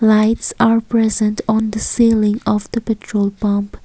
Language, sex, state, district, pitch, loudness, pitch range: English, female, Assam, Kamrup Metropolitan, 220 Hz, -16 LUFS, 210-225 Hz